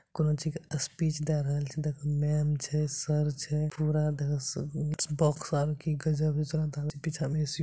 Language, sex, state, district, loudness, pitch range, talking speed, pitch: Maithili, male, Bihar, Supaul, -31 LUFS, 150-155 Hz, 110 wpm, 150 Hz